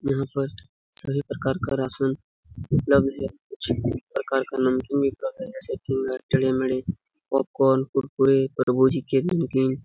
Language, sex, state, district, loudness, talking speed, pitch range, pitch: Hindi, male, Jharkhand, Jamtara, -24 LUFS, 150 wpm, 130-140 Hz, 135 Hz